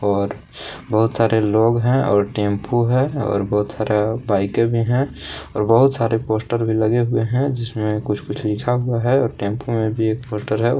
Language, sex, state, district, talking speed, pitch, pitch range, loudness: Hindi, male, Jharkhand, Palamu, 195 wpm, 110 Hz, 105-120 Hz, -19 LUFS